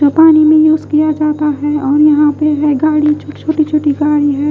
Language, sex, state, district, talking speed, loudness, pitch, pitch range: Hindi, female, Odisha, Khordha, 210 wpm, -11 LUFS, 300 Hz, 295-310 Hz